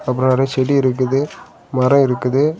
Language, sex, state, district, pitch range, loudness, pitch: Tamil, male, Tamil Nadu, Kanyakumari, 130-140 Hz, -16 LUFS, 135 Hz